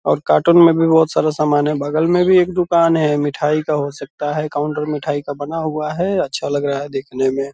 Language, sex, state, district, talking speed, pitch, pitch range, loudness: Hindi, male, Bihar, Purnia, 245 wpm, 150 Hz, 145-165 Hz, -17 LUFS